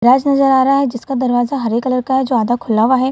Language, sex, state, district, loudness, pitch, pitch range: Hindi, female, Bihar, Gaya, -15 LUFS, 255 Hz, 240-265 Hz